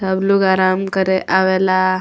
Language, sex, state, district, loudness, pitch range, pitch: Bhojpuri, female, Bihar, Muzaffarpur, -15 LUFS, 185-190 Hz, 190 Hz